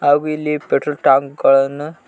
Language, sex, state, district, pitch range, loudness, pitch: Kannada, male, Karnataka, Koppal, 135-150 Hz, -16 LUFS, 145 Hz